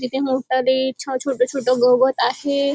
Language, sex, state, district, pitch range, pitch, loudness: Marathi, female, Maharashtra, Chandrapur, 255-270 Hz, 260 Hz, -19 LUFS